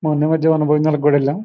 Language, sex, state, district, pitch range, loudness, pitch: Telugu, male, Andhra Pradesh, Guntur, 150-160 Hz, -16 LUFS, 150 Hz